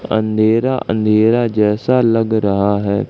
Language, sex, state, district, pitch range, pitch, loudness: Hindi, male, Madhya Pradesh, Katni, 105-115 Hz, 110 Hz, -15 LUFS